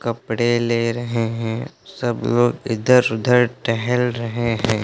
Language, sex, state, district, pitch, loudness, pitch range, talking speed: Hindi, male, Uttar Pradesh, Lucknow, 120 Hz, -20 LUFS, 115-120 Hz, 135 wpm